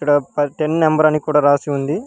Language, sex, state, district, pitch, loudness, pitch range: Telugu, male, Telangana, Hyderabad, 150 Hz, -16 LUFS, 145-155 Hz